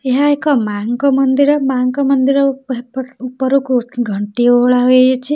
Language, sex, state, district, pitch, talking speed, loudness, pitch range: Odia, female, Odisha, Khordha, 260 Hz, 170 wpm, -14 LUFS, 245-275 Hz